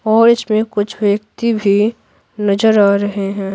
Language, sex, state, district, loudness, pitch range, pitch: Hindi, female, Bihar, Patna, -15 LUFS, 200-220 Hz, 210 Hz